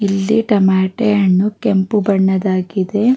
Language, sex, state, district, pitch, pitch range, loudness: Kannada, female, Karnataka, Mysore, 200 Hz, 190-210 Hz, -15 LUFS